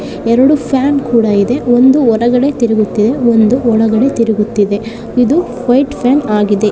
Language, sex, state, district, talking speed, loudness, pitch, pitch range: Kannada, female, Karnataka, Shimoga, 125 wpm, -11 LUFS, 240 Hz, 220-260 Hz